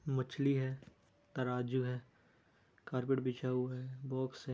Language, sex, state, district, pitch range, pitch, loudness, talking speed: Hindi, male, Bihar, Darbhanga, 125-130 Hz, 130 Hz, -38 LUFS, 130 wpm